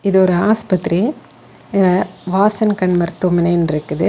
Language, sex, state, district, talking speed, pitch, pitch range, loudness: Tamil, female, Tamil Nadu, Kanyakumari, 100 wpm, 185 Hz, 170-200 Hz, -16 LUFS